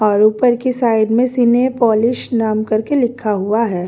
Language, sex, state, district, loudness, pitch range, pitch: Hindi, female, Delhi, New Delhi, -15 LUFS, 215-245 Hz, 230 Hz